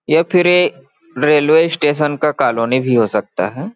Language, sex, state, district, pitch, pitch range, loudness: Hindi, male, Chhattisgarh, Balrampur, 150 Hz, 135-165 Hz, -14 LUFS